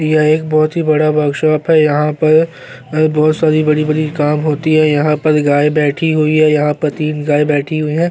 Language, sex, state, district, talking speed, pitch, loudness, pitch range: Hindi, male, Chhattisgarh, Korba, 200 wpm, 155 Hz, -13 LUFS, 150-155 Hz